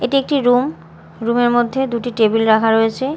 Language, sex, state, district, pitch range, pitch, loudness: Bengali, female, Odisha, Malkangiri, 225-265 Hz, 240 Hz, -16 LUFS